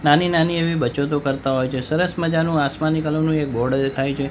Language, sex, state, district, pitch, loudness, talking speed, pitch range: Gujarati, male, Gujarat, Gandhinagar, 145 Hz, -20 LUFS, 220 wpm, 135-160 Hz